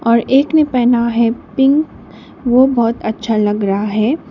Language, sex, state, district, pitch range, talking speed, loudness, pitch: Hindi, female, Sikkim, Gangtok, 220-270 Hz, 165 wpm, -14 LUFS, 235 Hz